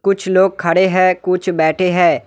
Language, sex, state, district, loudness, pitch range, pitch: Hindi, male, West Bengal, Alipurduar, -14 LUFS, 180-190 Hz, 185 Hz